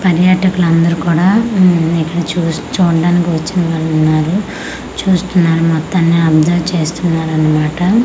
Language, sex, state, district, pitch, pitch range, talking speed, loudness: Telugu, female, Andhra Pradesh, Manyam, 170 Hz, 160-180 Hz, 105 wpm, -13 LUFS